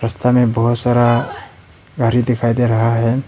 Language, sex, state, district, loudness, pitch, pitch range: Hindi, male, Arunachal Pradesh, Papum Pare, -15 LUFS, 120 Hz, 115-120 Hz